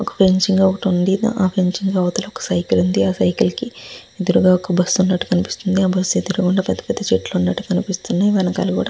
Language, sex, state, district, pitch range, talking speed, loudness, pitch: Telugu, female, Andhra Pradesh, Guntur, 180-190 Hz, 155 wpm, -18 LUFS, 185 Hz